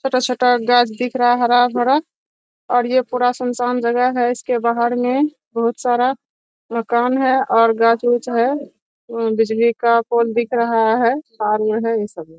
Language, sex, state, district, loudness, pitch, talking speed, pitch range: Hindi, female, Bihar, Araria, -17 LUFS, 240 Hz, 165 wpm, 230-250 Hz